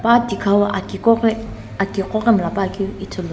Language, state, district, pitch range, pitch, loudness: Sumi, Nagaland, Dimapur, 195-225 Hz, 200 Hz, -19 LUFS